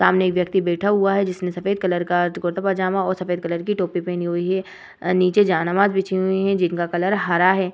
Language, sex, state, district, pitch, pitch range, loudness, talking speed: Hindi, female, Bihar, Vaishali, 185 Hz, 175-190 Hz, -20 LUFS, 235 wpm